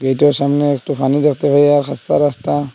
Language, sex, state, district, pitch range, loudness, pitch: Bengali, male, Assam, Hailakandi, 140-145 Hz, -15 LUFS, 145 Hz